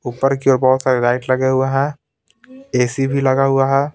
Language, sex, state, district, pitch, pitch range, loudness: Hindi, male, Bihar, Patna, 135 Hz, 130-140 Hz, -16 LUFS